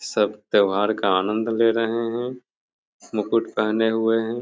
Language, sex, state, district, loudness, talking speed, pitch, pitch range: Hindi, male, Bihar, Begusarai, -22 LUFS, 150 wpm, 115 Hz, 110-115 Hz